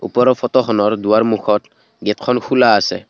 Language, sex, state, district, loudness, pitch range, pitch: Assamese, male, Assam, Kamrup Metropolitan, -15 LUFS, 105-125 Hz, 110 Hz